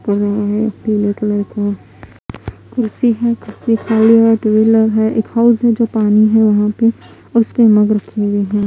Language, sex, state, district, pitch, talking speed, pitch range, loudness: Hindi, female, Haryana, Jhajjar, 220 Hz, 150 wpm, 210-230 Hz, -14 LUFS